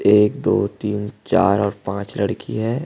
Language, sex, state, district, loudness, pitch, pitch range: Hindi, male, Chhattisgarh, Jashpur, -20 LUFS, 105 Hz, 100-105 Hz